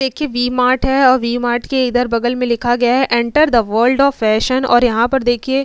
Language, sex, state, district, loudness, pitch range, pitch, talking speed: Hindi, female, Uttar Pradesh, Hamirpur, -14 LUFS, 240-265 Hz, 245 Hz, 235 wpm